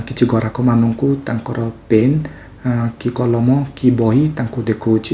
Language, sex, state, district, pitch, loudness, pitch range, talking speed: Odia, male, Odisha, Khordha, 120 Hz, -17 LUFS, 115-130 Hz, 130 wpm